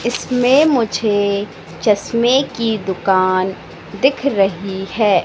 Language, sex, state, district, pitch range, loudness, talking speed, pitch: Hindi, female, Madhya Pradesh, Katni, 195-245 Hz, -16 LUFS, 90 wpm, 210 Hz